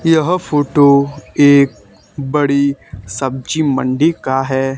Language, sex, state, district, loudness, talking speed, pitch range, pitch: Hindi, male, Haryana, Charkhi Dadri, -14 LUFS, 90 wpm, 130-145 Hz, 140 Hz